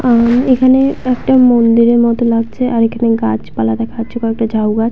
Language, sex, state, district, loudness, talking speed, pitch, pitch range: Bengali, female, West Bengal, Purulia, -12 LUFS, 185 wpm, 235 Hz, 225-250 Hz